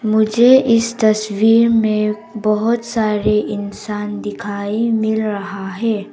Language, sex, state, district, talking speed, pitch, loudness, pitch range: Hindi, female, Arunachal Pradesh, Papum Pare, 105 wpm, 215 Hz, -16 LUFS, 210-225 Hz